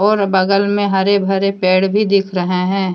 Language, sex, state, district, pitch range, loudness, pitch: Hindi, female, Jharkhand, Deoghar, 190-200 Hz, -15 LUFS, 195 Hz